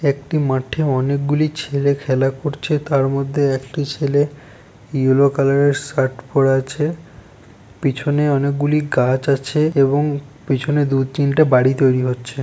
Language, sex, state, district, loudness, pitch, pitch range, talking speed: Bengali, male, West Bengal, Purulia, -18 LUFS, 140 Hz, 130-145 Hz, 135 wpm